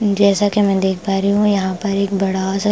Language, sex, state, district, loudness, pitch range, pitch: Hindi, female, Punjab, Pathankot, -17 LUFS, 195-205 Hz, 200 Hz